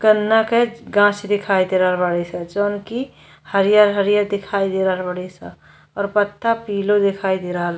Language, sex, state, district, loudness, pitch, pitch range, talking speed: Bhojpuri, female, Uttar Pradesh, Gorakhpur, -18 LUFS, 200 Hz, 185-210 Hz, 170 wpm